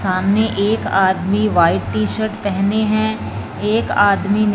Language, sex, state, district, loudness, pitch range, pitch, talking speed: Hindi, female, Punjab, Fazilka, -17 LUFS, 185-215 Hz, 200 Hz, 145 wpm